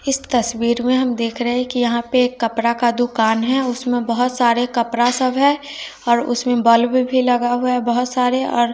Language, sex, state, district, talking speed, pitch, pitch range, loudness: Hindi, female, Bihar, West Champaran, 205 wpm, 245 Hz, 235-250 Hz, -17 LUFS